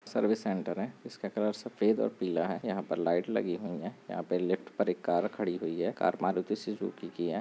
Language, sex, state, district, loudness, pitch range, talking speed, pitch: Hindi, male, Goa, North and South Goa, -33 LUFS, 90-105 Hz, 235 wpm, 90 Hz